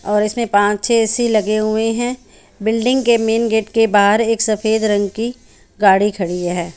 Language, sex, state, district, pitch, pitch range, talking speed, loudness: Hindi, female, Haryana, Charkhi Dadri, 220 Hz, 205-230 Hz, 185 wpm, -16 LUFS